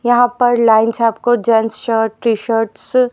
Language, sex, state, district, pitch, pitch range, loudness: Hindi, female, Haryana, Charkhi Dadri, 230 Hz, 225-240 Hz, -14 LUFS